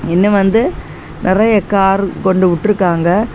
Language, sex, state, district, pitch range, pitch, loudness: Tamil, female, Tamil Nadu, Kanyakumari, 185-210 Hz, 195 Hz, -13 LUFS